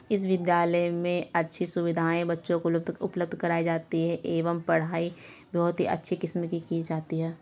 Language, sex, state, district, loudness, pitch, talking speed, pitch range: Hindi, female, Bihar, Lakhisarai, -28 LUFS, 170 Hz, 170 wpm, 165-175 Hz